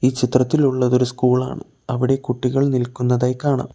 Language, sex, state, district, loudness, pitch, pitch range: Malayalam, male, Kerala, Kollam, -19 LUFS, 125 Hz, 125-135 Hz